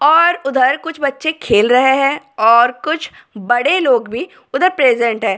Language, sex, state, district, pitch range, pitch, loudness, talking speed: Hindi, female, Delhi, New Delhi, 240-310 Hz, 270 Hz, -14 LUFS, 180 wpm